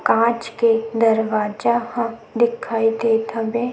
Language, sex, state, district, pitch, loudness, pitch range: Chhattisgarhi, female, Chhattisgarh, Sukma, 230 Hz, -20 LUFS, 225-235 Hz